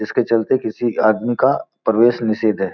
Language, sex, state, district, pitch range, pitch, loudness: Hindi, male, Bihar, Gopalganj, 110-120 Hz, 110 Hz, -17 LUFS